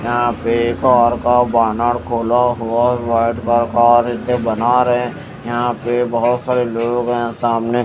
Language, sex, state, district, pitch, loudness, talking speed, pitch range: Hindi, male, Chandigarh, Chandigarh, 120 Hz, -16 LUFS, 160 wpm, 115-120 Hz